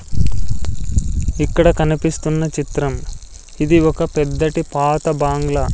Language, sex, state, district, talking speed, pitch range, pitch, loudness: Telugu, male, Andhra Pradesh, Sri Satya Sai, 85 wpm, 145-160 Hz, 155 Hz, -18 LUFS